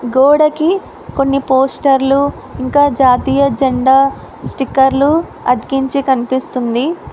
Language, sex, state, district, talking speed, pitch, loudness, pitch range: Telugu, female, Telangana, Hyderabad, 75 wpm, 270 Hz, -13 LUFS, 260-280 Hz